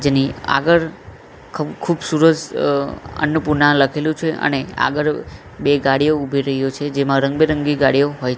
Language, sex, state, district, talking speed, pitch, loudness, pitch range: Gujarati, male, Gujarat, Gandhinagar, 135 wpm, 145 Hz, -17 LUFS, 135-155 Hz